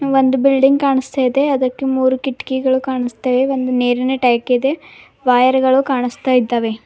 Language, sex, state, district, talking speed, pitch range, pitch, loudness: Kannada, female, Karnataka, Bidar, 140 wpm, 250-270 Hz, 260 Hz, -16 LUFS